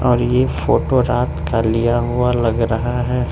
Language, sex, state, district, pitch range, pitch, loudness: Hindi, male, Arunachal Pradesh, Lower Dibang Valley, 115-125 Hz, 120 Hz, -17 LUFS